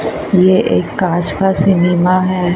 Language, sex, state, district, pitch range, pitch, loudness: Hindi, female, Maharashtra, Mumbai Suburban, 175-185 Hz, 185 Hz, -13 LUFS